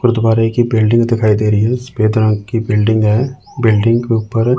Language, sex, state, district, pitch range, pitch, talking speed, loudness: Hindi, male, Chandigarh, Chandigarh, 110-120 Hz, 115 Hz, 195 wpm, -14 LUFS